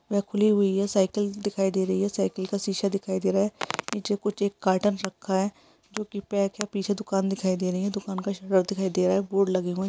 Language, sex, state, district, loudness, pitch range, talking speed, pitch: Hindi, female, Bihar, Kishanganj, -26 LUFS, 190-205 Hz, 260 wpm, 195 Hz